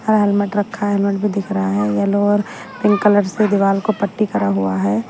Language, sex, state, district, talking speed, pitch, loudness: Hindi, female, Haryana, Jhajjar, 225 wpm, 200 Hz, -17 LUFS